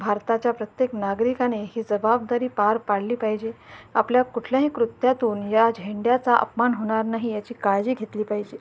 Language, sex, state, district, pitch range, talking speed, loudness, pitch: Marathi, female, Maharashtra, Sindhudurg, 210-240 Hz, 140 wpm, -23 LUFS, 225 Hz